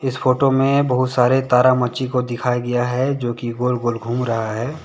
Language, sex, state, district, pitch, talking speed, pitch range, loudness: Hindi, male, Jharkhand, Deoghar, 125 Hz, 210 wpm, 120-130 Hz, -19 LUFS